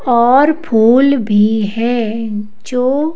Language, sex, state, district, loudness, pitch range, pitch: Hindi, female, Madhya Pradesh, Bhopal, -13 LUFS, 220-265 Hz, 235 Hz